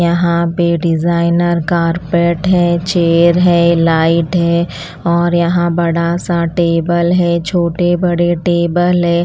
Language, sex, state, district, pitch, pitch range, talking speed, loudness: Hindi, female, Punjab, Pathankot, 170 Hz, 170-175 Hz, 125 wpm, -13 LUFS